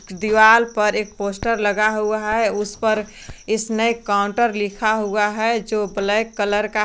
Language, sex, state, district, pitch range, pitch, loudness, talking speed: Hindi, female, Jharkhand, Garhwa, 205-220 Hz, 215 Hz, -19 LUFS, 165 wpm